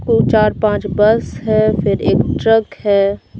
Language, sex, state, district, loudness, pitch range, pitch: Hindi, female, Jharkhand, Deoghar, -14 LUFS, 200-215 Hz, 210 Hz